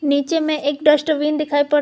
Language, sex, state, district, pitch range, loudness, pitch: Hindi, female, Jharkhand, Garhwa, 290-305 Hz, -18 LUFS, 300 Hz